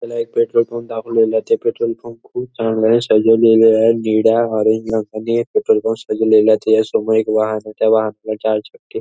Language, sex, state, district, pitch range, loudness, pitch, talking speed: Marathi, male, Maharashtra, Nagpur, 110-115 Hz, -15 LUFS, 110 Hz, 185 wpm